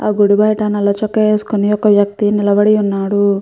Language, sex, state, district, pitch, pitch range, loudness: Telugu, female, Andhra Pradesh, Chittoor, 205 Hz, 205-215 Hz, -13 LUFS